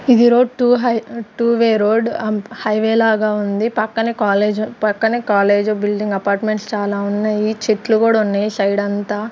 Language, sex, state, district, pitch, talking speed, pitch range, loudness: Telugu, female, Andhra Pradesh, Sri Satya Sai, 215 Hz, 150 wpm, 205-225 Hz, -16 LUFS